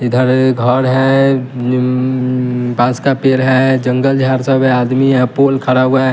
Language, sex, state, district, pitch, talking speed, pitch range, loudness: Hindi, male, Bihar, West Champaran, 130 Hz, 185 wpm, 125-130 Hz, -13 LUFS